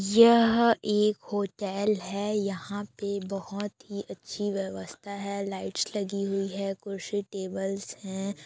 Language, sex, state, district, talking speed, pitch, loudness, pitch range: Hindi, female, Chhattisgarh, Raigarh, 135 wpm, 200 Hz, -29 LUFS, 195-205 Hz